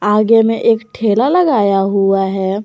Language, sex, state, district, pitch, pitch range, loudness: Hindi, female, Jharkhand, Garhwa, 210 Hz, 195-225 Hz, -13 LUFS